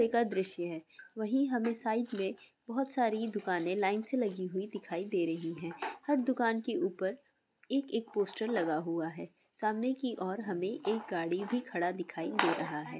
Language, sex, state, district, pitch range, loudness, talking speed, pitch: Hindi, female, Andhra Pradesh, Chittoor, 180-235 Hz, -34 LUFS, 185 wpm, 210 Hz